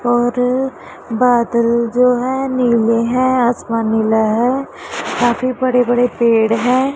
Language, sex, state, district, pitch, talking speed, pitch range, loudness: Hindi, female, Punjab, Pathankot, 245 Hz, 120 wpm, 235-255 Hz, -15 LUFS